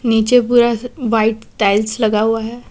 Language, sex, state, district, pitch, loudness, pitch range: Hindi, female, Jharkhand, Deoghar, 225 Hz, -15 LUFS, 220-240 Hz